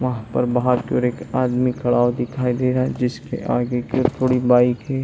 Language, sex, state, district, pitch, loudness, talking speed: Hindi, male, Bihar, Saran, 125 Hz, -20 LUFS, 215 wpm